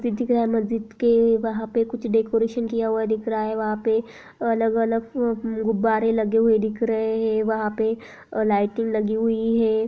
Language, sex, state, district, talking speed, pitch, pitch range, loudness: Hindi, female, Chhattisgarh, Raigarh, 175 wpm, 225 Hz, 220-230 Hz, -22 LUFS